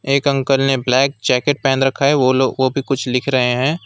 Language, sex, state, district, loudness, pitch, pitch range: Hindi, male, West Bengal, Alipurduar, -16 LUFS, 135 Hz, 130-140 Hz